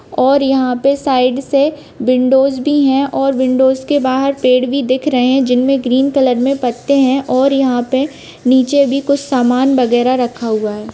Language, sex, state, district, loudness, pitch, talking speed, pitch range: Hindi, female, Bihar, Vaishali, -13 LUFS, 265 Hz, 185 wpm, 255-275 Hz